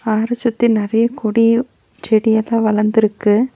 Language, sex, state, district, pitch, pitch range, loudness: Tamil, female, Tamil Nadu, Nilgiris, 220 Hz, 215-235 Hz, -16 LUFS